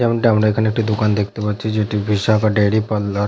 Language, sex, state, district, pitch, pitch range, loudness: Bengali, male, West Bengal, Jhargram, 105 Hz, 105-110 Hz, -17 LUFS